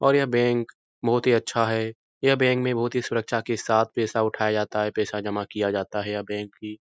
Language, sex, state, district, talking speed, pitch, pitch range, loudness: Hindi, male, Uttar Pradesh, Etah, 235 wpm, 110 Hz, 105-120 Hz, -25 LUFS